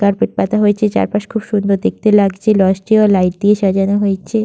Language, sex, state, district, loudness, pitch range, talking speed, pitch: Bengali, female, West Bengal, Purulia, -14 LUFS, 195-210 Hz, 190 wpm, 205 Hz